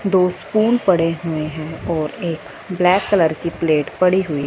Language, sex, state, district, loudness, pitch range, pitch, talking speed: Hindi, female, Punjab, Fazilka, -18 LUFS, 155-185 Hz, 170 Hz, 175 wpm